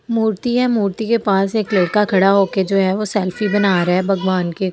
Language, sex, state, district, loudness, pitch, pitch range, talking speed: Hindi, female, Delhi, New Delhi, -17 LUFS, 195 Hz, 190-215 Hz, 240 wpm